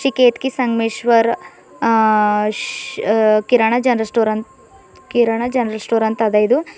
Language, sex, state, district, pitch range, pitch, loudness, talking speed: Kannada, female, Karnataka, Bidar, 220-245 Hz, 230 Hz, -16 LUFS, 125 wpm